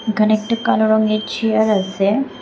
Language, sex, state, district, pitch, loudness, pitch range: Bengali, female, Tripura, West Tripura, 220 Hz, -17 LUFS, 215-220 Hz